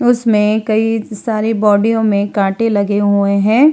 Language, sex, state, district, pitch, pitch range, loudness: Hindi, female, Uttar Pradesh, Hamirpur, 215 Hz, 205-225 Hz, -14 LUFS